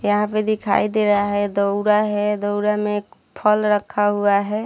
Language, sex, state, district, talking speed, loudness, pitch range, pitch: Hindi, female, Bihar, Saharsa, 195 wpm, -19 LUFS, 205-210 Hz, 205 Hz